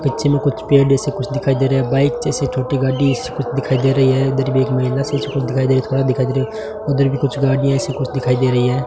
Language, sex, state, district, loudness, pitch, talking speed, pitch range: Hindi, male, Rajasthan, Bikaner, -17 LUFS, 135 Hz, 265 wpm, 130-140 Hz